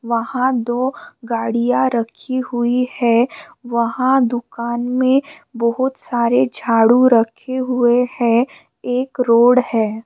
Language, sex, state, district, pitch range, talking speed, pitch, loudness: Hindi, female, Bihar, Bhagalpur, 235-255 Hz, 105 wpm, 240 Hz, -17 LUFS